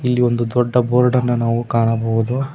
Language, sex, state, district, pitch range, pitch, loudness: Kannada, male, Karnataka, Koppal, 115-125 Hz, 120 Hz, -17 LUFS